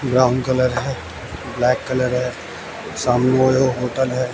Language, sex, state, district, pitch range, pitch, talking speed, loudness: Hindi, male, Haryana, Jhajjar, 125-130 Hz, 125 Hz, 140 wpm, -19 LUFS